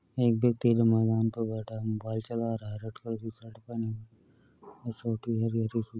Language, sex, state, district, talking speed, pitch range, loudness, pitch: Hindi, male, Uttar Pradesh, Varanasi, 180 wpm, 110-115 Hz, -30 LUFS, 115 Hz